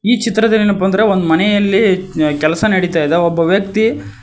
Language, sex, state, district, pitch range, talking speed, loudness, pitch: Kannada, male, Karnataka, Koppal, 165-215 Hz, 155 wpm, -13 LUFS, 190 Hz